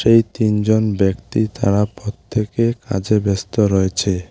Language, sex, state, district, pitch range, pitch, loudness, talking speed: Bengali, male, West Bengal, Alipurduar, 100-110 Hz, 105 Hz, -18 LUFS, 110 wpm